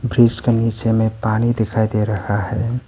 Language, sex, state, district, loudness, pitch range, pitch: Hindi, male, Arunachal Pradesh, Papum Pare, -18 LUFS, 110-120 Hz, 115 Hz